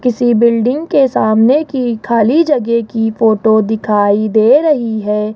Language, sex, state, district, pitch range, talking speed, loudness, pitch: Hindi, female, Rajasthan, Jaipur, 220-250 Hz, 145 wpm, -12 LUFS, 230 Hz